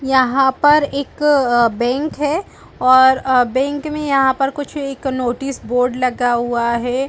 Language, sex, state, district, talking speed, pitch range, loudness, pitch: Hindi, female, Chhattisgarh, Balrampur, 145 wpm, 250-285 Hz, -16 LUFS, 265 Hz